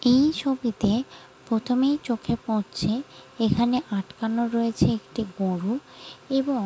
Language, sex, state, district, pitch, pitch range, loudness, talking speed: Bengali, female, West Bengal, Jalpaiguri, 230 Hz, 220-255 Hz, -25 LUFS, 110 wpm